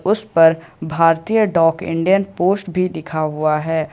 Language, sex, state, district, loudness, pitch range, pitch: Hindi, male, Jharkhand, Ranchi, -17 LUFS, 160-190 Hz, 165 Hz